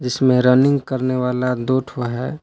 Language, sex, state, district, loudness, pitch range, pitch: Hindi, male, Jharkhand, Palamu, -18 LUFS, 125-130 Hz, 125 Hz